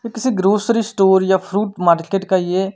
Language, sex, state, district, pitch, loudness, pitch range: Hindi, male, Chandigarh, Chandigarh, 195 Hz, -16 LUFS, 190-215 Hz